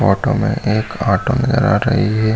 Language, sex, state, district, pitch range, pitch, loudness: Hindi, male, Chhattisgarh, Bilaspur, 105-120 Hz, 110 Hz, -16 LUFS